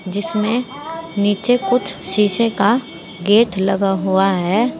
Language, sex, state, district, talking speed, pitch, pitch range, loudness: Hindi, female, Uttar Pradesh, Saharanpur, 115 wpm, 205 Hz, 195-235 Hz, -16 LUFS